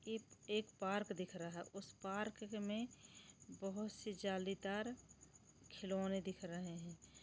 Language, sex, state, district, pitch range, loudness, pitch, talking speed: Hindi, male, Chhattisgarh, Rajnandgaon, 190-210 Hz, -46 LUFS, 195 Hz, 135 wpm